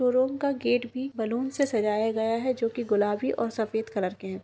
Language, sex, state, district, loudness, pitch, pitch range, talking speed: Hindi, female, Bihar, Kishanganj, -27 LUFS, 230 Hz, 215-255 Hz, 230 wpm